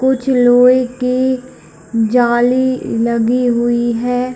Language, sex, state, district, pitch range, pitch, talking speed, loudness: Hindi, female, Chhattisgarh, Bilaspur, 235-255 Hz, 245 Hz, 95 wpm, -14 LUFS